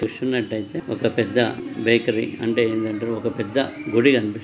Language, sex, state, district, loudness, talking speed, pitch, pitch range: Telugu, male, Andhra Pradesh, Guntur, -22 LUFS, 150 wpm, 115 Hz, 110-125 Hz